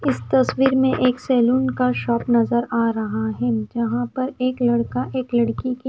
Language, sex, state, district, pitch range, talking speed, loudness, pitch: Hindi, female, Himachal Pradesh, Shimla, 230-255 Hz, 185 wpm, -20 LUFS, 240 Hz